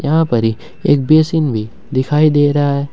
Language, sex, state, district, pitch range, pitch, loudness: Hindi, male, Jharkhand, Ranchi, 120-155 Hz, 145 Hz, -14 LUFS